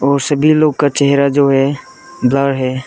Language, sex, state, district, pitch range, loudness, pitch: Hindi, male, Arunachal Pradesh, Lower Dibang Valley, 135-145 Hz, -13 LUFS, 140 Hz